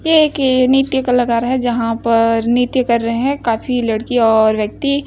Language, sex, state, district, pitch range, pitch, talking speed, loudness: Hindi, female, Chhattisgarh, Bilaspur, 230-265 Hz, 245 Hz, 180 wpm, -15 LUFS